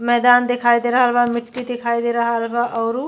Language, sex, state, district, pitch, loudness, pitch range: Bhojpuri, female, Uttar Pradesh, Deoria, 240 Hz, -18 LUFS, 235-245 Hz